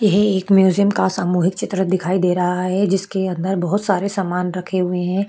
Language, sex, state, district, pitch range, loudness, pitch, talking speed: Hindi, female, Chhattisgarh, Korba, 180-195 Hz, -18 LUFS, 190 Hz, 205 wpm